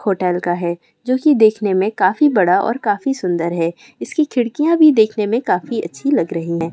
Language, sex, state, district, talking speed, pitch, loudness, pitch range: Hindi, female, Bihar, Purnia, 205 wpm, 215 Hz, -16 LUFS, 175-255 Hz